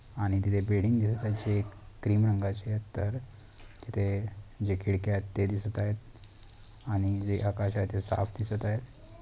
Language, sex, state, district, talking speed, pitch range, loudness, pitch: Marathi, male, Maharashtra, Dhule, 170 wpm, 100-110 Hz, -31 LUFS, 105 Hz